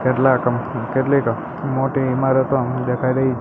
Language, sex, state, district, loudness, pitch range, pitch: Gujarati, male, Gujarat, Gandhinagar, -19 LUFS, 125-135 Hz, 130 Hz